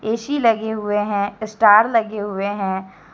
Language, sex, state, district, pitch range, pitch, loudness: Hindi, female, Jharkhand, Deoghar, 200-220 Hz, 210 Hz, -19 LUFS